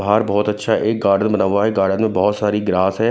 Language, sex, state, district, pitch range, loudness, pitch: Hindi, male, Punjab, Kapurthala, 100-110 Hz, -17 LUFS, 105 Hz